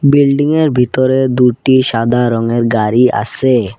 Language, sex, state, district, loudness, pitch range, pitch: Bengali, male, Assam, Kamrup Metropolitan, -12 LUFS, 115-130 Hz, 125 Hz